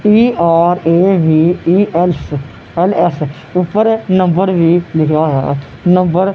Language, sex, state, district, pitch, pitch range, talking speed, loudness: Punjabi, male, Punjab, Kapurthala, 175 Hz, 155-185 Hz, 75 wpm, -12 LUFS